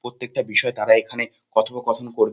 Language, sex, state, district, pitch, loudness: Bengali, male, West Bengal, North 24 Parganas, 125 Hz, -20 LUFS